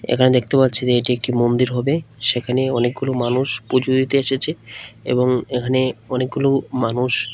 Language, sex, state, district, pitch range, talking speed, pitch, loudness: Bengali, male, Tripura, West Tripura, 125-130 Hz, 145 wpm, 125 Hz, -19 LUFS